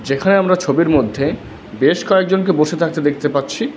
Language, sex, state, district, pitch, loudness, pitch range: Bengali, male, West Bengal, Alipurduar, 165 Hz, -16 LUFS, 145-190 Hz